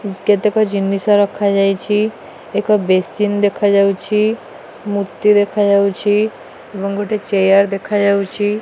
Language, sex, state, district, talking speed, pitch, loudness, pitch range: Odia, female, Odisha, Malkangiri, 110 wpm, 205 Hz, -15 LUFS, 200-210 Hz